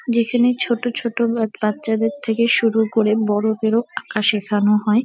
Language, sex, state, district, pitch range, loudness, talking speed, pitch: Bengali, female, West Bengal, North 24 Parganas, 215-235 Hz, -19 LUFS, 140 wpm, 225 Hz